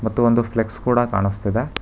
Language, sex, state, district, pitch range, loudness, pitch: Kannada, male, Karnataka, Bangalore, 110-120 Hz, -20 LUFS, 115 Hz